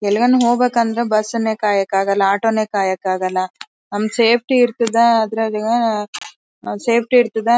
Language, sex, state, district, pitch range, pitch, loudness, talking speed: Kannada, female, Karnataka, Bellary, 205-235 Hz, 220 Hz, -17 LUFS, 120 wpm